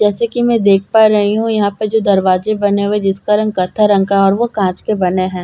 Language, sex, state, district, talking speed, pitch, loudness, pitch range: Hindi, female, Bihar, Katihar, 265 wpm, 205 Hz, -13 LUFS, 195-215 Hz